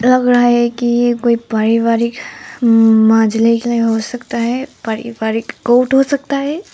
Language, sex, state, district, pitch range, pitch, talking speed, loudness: Hindi, female, Arunachal Pradesh, Papum Pare, 225-250 Hz, 235 Hz, 150 wpm, -14 LUFS